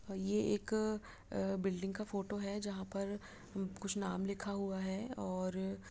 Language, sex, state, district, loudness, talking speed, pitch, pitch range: Hindi, female, Bihar, Begusarai, -40 LUFS, 150 wpm, 195 Hz, 195-205 Hz